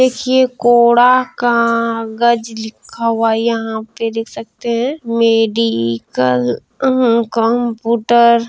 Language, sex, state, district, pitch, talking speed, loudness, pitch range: Maithili, female, Bihar, Bhagalpur, 230 Hz, 115 wpm, -14 LUFS, 225-235 Hz